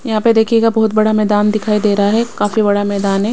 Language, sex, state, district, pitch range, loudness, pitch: Hindi, female, Bihar, West Champaran, 205-220 Hz, -14 LUFS, 215 Hz